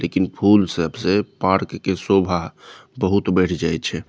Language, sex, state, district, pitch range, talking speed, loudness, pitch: Maithili, male, Bihar, Saharsa, 85-100 Hz, 160 wpm, -19 LUFS, 95 Hz